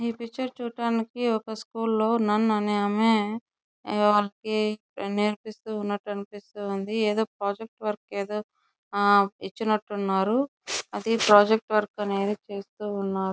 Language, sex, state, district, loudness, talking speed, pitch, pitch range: Telugu, female, Andhra Pradesh, Chittoor, -26 LUFS, 115 wpm, 210 Hz, 205-225 Hz